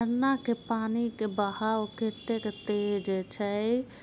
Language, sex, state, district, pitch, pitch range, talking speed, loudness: Hindi, female, Bihar, Muzaffarpur, 220 Hz, 205-235 Hz, 120 wpm, -30 LUFS